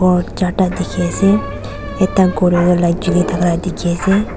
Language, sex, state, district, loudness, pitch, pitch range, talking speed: Nagamese, female, Nagaland, Dimapur, -15 LUFS, 180 Hz, 115-185 Hz, 180 wpm